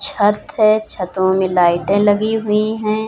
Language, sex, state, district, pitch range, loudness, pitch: Hindi, female, Uttar Pradesh, Hamirpur, 190-215 Hz, -16 LUFS, 210 Hz